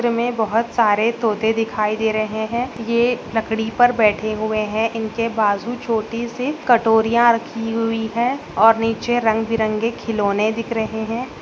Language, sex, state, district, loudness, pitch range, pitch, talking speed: Hindi, female, Uttar Pradesh, Budaun, -19 LUFS, 220-235 Hz, 225 Hz, 160 wpm